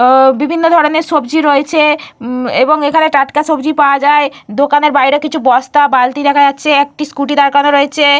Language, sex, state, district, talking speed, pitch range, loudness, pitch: Bengali, female, Jharkhand, Jamtara, 170 wpm, 275-300 Hz, -10 LUFS, 285 Hz